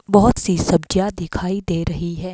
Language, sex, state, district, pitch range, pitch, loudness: Hindi, female, Himachal Pradesh, Shimla, 170-195 Hz, 185 Hz, -19 LUFS